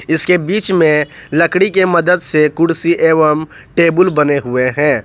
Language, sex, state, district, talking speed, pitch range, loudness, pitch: Hindi, male, Jharkhand, Ranchi, 155 wpm, 150-175 Hz, -13 LUFS, 160 Hz